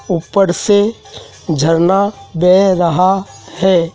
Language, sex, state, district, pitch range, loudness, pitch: Hindi, male, Madhya Pradesh, Dhar, 170-195 Hz, -13 LUFS, 180 Hz